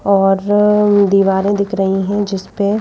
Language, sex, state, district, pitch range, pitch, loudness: Hindi, female, Madhya Pradesh, Bhopal, 195-205 Hz, 200 Hz, -14 LUFS